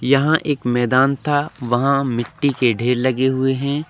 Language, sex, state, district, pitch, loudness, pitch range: Hindi, male, Madhya Pradesh, Katni, 135 Hz, -18 LUFS, 125-140 Hz